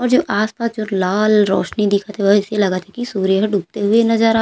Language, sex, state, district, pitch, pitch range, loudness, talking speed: Chhattisgarhi, female, Chhattisgarh, Raigarh, 210 Hz, 200-225 Hz, -17 LUFS, 245 wpm